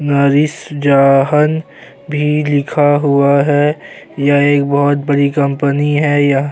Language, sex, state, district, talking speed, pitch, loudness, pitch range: Urdu, male, Bihar, Saharsa, 120 wpm, 145 Hz, -13 LUFS, 140-150 Hz